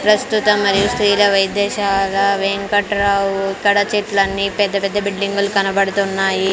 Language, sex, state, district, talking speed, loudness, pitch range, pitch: Telugu, female, Andhra Pradesh, Sri Satya Sai, 100 wpm, -16 LUFS, 195-205 Hz, 200 Hz